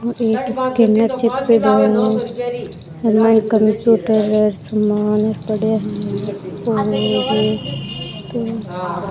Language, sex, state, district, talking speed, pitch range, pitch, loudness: Rajasthani, female, Rajasthan, Churu, 85 wpm, 205-230 Hz, 220 Hz, -17 LUFS